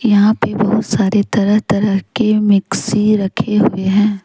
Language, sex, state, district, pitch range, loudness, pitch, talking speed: Hindi, female, Jharkhand, Deoghar, 200-215 Hz, -14 LUFS, 205 Hz, 155 wpm